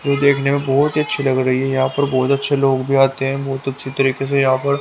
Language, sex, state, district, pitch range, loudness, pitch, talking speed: Hindi, male, Haryana, Rohtak, 135-140 Hz, -17 LUFS, 135 Hz, 285 wpm